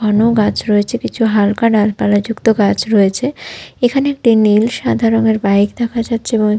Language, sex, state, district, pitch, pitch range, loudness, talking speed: Bengali, female, West Bengal, Malda, 220 Hz, 210-230 Hz, -14 LUFS, 165 wpm